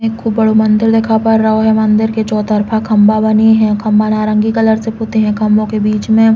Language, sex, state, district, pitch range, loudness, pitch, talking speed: Bundeli, female, Uttar Pradesh, Hamirpur, 215-220 Hz, -12 LUFS, 220 Hz, 245 wpm